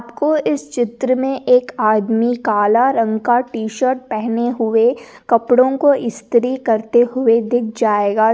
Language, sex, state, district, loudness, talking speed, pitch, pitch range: Hindi, female, Rajasthan, Nagaur, -16 LUFS, 135 wpm, 240 Hz, 225-255 Hz